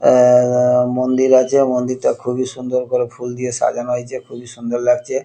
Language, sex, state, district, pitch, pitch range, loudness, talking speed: Bengali, male, West Bengal, Kolkata, 125 Hz, 125-130 Hz, -16 LUFS, 170 wpm